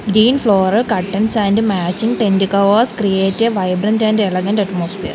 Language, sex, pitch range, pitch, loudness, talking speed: English, female, 195-220 Hz, 205 Hz, -15 LUFS, 150 wpm